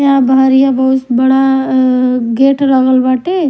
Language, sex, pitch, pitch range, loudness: Bhojpuri, female, 265 Hz, 255-270 Hz, -10 LUFS